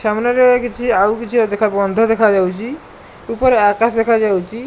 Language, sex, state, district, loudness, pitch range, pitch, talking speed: Odia, male, Odisha, Malkangiri, -14 LUFS, 205-240 Hz, 225 Hz, 130 wpm